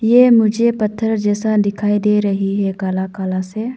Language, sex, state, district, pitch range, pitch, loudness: Hindi, female, Arunachal Pradesh, Longding, 195-220 Hz, 210 Hz, -16 LUFS